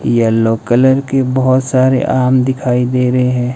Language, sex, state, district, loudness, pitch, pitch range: Hindi, male, Himachal Pradesh, Shimla, -13 LUFS, 125 Hz, 125-130 Hz